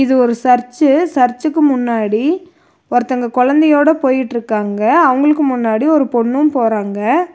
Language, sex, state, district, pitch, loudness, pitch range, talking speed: Tamil, female, Tamil Nadu, Nilgiris, 260 Hz, -14 LUFS, 235-305 Hz, 105 wpm